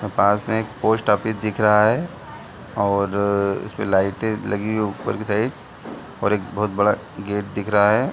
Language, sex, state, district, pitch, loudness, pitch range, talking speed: Hindi, male, Bihar, Gaya, 105 Hz, -21 LUFS, 100-110 Hz, 175 wpm